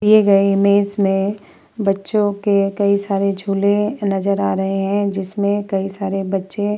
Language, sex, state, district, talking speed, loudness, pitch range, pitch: Hindi, female, Uttar Pradesh, Muzaffarnagar, 160 wpm, -18 LUFS, 195-205 Hz, 200 Hz